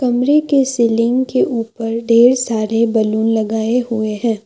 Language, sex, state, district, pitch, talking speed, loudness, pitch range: Hindi, female, Assam, Kamrup Metropolitan, 230 Hz, 145 wpm, -15 LUFS, 225-245 Hz